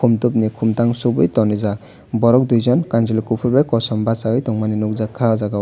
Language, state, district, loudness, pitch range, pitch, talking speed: Kokborok, Tripura, West Tripura, -17 LUFS, 110-120 Hz, 115 Hz, 190 wpm